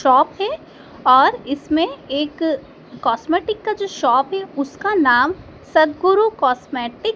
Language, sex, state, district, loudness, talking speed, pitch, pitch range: Hindi, female, Madhya Pradesh, Dhar, -18 LUFS, 125 wpm, 310 Hz, 270-385 Hz